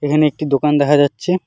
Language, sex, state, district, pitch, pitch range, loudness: Bengali, male, West Bengal, Alipurduar, 150 Hz, 145-155 Hz, -15 LUFS